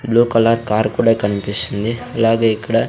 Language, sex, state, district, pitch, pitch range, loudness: Telugu, male, Andhra Pradesh, Sri Satya Sai, 115 Hz, 105-115 Hz, -16 LUFS